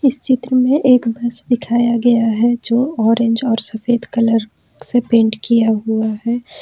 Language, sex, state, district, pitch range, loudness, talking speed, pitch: Hindi, female, Jharkhand, Ranchi, 225-245 Hz, -15 LUFS, 165 wpm, 235 Hz